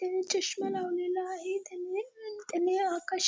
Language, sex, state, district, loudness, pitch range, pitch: Marathi, female, Maharashtra, Dhule, -33 LUFS, 365-390 Hz, 375 Hz